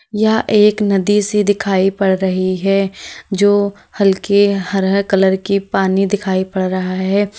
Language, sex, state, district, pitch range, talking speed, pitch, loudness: Hindi, female, Uttar Pradesh, Lalitpur, 190-205 Hz, 145 wpm, 195 Hz, -15 LUFS